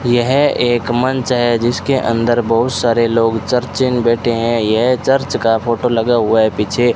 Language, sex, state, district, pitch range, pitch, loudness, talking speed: Hindi, male, Rajasthan, Bikaner, 115-125 Hz, 120 Hz, -15 LUFS, 180 wpm